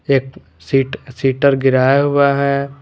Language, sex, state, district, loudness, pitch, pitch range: Hindi, male, Jharkhand, Garhwa, -15 LUFS, 140 Hz, 135-140 Hz